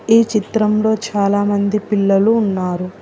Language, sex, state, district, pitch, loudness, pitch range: Telugu, female, Telangana, Hyderabad, 210 Hz, -16 LUFS, 200-220 Hz